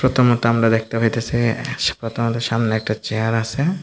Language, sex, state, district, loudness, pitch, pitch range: Bengali, male, Tripura, Dhalai, -19 LUFS, 115 Hz, 115-120 Hz